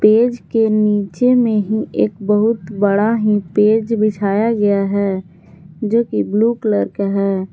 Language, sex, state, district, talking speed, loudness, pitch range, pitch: Hindi, female, Jharkhand, Garhwa, 145 wpm, -16 LUFS, 200-220 Hz, 210 Hz